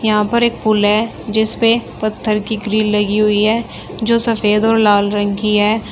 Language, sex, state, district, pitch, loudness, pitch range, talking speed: Hindi, female, Uttar Pradesh, Shamli, 215 Hz, -15 LUFS, 210-225 Hz, 200 wpm